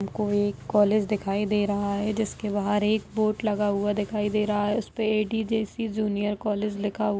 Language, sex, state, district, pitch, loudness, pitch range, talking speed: Hindi, female, Maharashtra, Solapur, 210 Hz, -26 LUFS, 205-215 Hz, 185 wpm